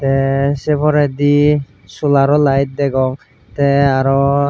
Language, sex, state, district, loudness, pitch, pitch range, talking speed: Chakma, male, Tripura, Unakoti, -14 LUFS, 140 Hz, 135-145 Hz, 105 wpm